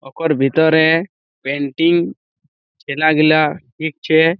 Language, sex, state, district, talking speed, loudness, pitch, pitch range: Bengali, male, West Bengal, Malda, 70 wpm, -16 LUFS, 155 Hz, 145-160 Hz